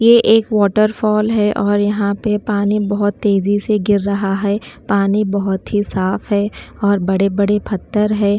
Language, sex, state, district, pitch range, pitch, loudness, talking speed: Hindi, female, Maharashtra, Mumbai Suburban, 200-210 Hz, 205 Hz, -16 LUFS, 165 wpm